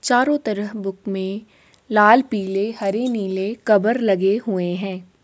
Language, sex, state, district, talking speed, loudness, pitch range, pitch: Hindi, female, Chhattisgarh, Korba, 135 wpm, -20 LUFS, 195-220 Hz, 205 Hz